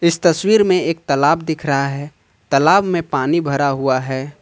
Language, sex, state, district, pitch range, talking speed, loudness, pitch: Hindi, male, Jharkhand, Ranchi, 140-170 Hz, 190 wpm, -16 LUFS, 145 Hz